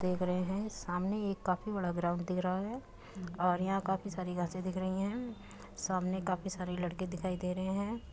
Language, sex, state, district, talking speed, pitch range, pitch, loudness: Hindi, female, Uttar Pradesh, Muzaffarnagar, 200 wpm, 180-195 Hz, 185 Hz, -36 LUFS